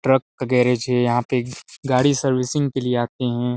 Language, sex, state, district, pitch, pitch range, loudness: Hindi, male, Chhattisgarh, Sarguja, 125 Hz, 125-135 Hz, -20 LUFS